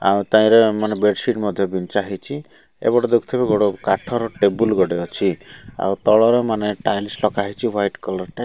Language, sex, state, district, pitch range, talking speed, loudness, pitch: Odia, male, Odisha, Malkangiri, 100-115 Hz, 170 wpm, -19 LUFS, 105 Hz